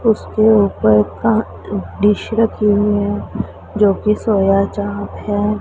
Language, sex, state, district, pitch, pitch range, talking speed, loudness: Hindi, female, Punjab, Pathankot, 205 Hz, 200-215 Hz, 115 wpm, -16 LUFS